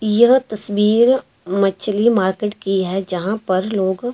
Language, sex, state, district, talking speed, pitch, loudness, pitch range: Hindi, female, Himachal Pradesh, Shimla, 130 wpm, 205 Hz, -17 LUFS, 190-220 Hz